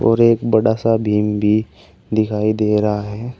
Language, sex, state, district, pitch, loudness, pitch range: Hindi, male, Uttar Pradesh, Saharanpur, 110 Hz, -17 LUFS, 105-110 Hz